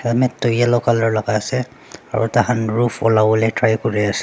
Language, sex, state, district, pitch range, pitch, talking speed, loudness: Nagamese, male, Nagaland, Dimapur, 110-120 Hz, 115 Hz, 185 wpm, -17 LUFS